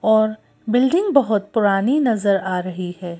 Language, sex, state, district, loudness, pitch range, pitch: Hindi, female, Madhya Pradesh, Bhopal, -19 LUFS, 190-245 Hz, 215 Hz